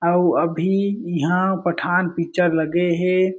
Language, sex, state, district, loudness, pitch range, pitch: Chhattisgarhi, male, Chhattisgarh, Jashpur, -20 LUFS, 170-185 Hz, 175 Hz